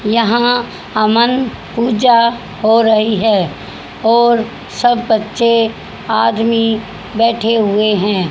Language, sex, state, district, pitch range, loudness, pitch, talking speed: Hindi, female, Haryana, Rohtak, 215-235 Hz, -13 LUFS, 225 Hz, 95 wpm